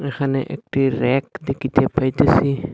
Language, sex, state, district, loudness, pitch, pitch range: Bengali, male, Assam, Hailakandi, -19 LUFS, 135 Hz, 135-140 Hz